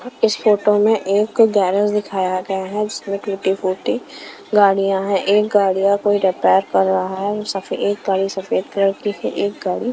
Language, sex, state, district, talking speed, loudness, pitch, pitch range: Hindi, female, Himachal Pradesh, Shimla, 155 wpm, -18 LUFS, 200 Hz, 195-210 Hz